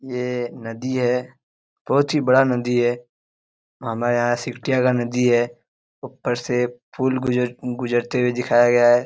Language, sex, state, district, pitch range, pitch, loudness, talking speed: Hindi, male, Jharkhand, Jamtara, 120-125 Hz, 125 Hz, -21 LUFS, 160 wpm